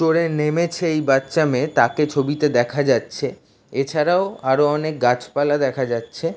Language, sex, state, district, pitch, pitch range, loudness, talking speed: Bengali, male, West Bengal, Dakshin Dinajpur, 145 Hz, 135-160 Hz, -20 LUFS, 140 wpm